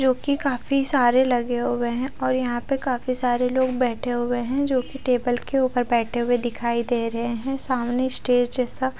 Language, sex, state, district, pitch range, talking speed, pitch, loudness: Hindi, female, Odisha, Khordha, 240-260 Hz, 185 wpm, 250 Hz, -21 LUFS